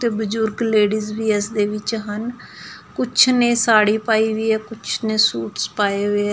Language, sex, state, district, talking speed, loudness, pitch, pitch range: Punjabi, female, Punjab, Fazilka, 170 wpm, -19 LUFS, 220 Hz, 210-225 Hz